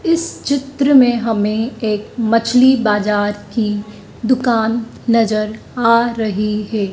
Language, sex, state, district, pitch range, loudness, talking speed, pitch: Hindi, female, Madhya Pradesh, Dhar, 210-245 Hz, -16 LUFS, 115 wpm, 225 Hz